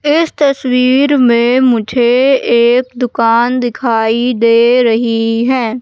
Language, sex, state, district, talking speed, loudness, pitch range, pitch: Hindi, female, Madhya Pradesh, Katni, 105 wpm, -11 LUFS, 230-255 Hz, 245 Hz